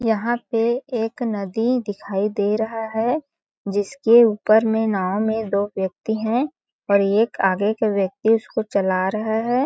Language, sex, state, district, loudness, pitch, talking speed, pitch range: Hindi, female, Chhattisgarh, Balrampur, -21 LUFS, 220 Hz, 160 wpm, 200-230 Hz